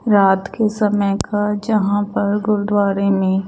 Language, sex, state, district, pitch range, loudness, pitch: Hindi, female, Chandigarh, Chandigarh, 200-210 Hz, -17 LUFS, 205 Hz